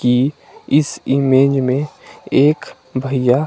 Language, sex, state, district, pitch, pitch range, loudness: Hindi, male, Himachal Pradesh, Shimla, 135 Hz, 130-140 Hz, -16 LUFS